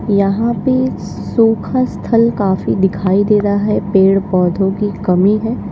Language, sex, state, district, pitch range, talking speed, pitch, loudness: Hindi, female, Uttar Pradesh, Lalitpur, 195-230 Hz, 145 wpm, 205 Hz, -14 LUFS